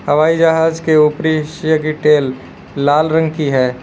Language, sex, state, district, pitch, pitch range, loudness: Hindi, male, Uttar Pradesh, Lalitpur, 155 Hz, 145-160 Hz, -14 LUFS